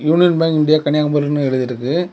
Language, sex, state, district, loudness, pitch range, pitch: Tamil, male, Tamil Nadu, Kanyakumari, -16 LUFS, 145-165 Hz, 150 Hz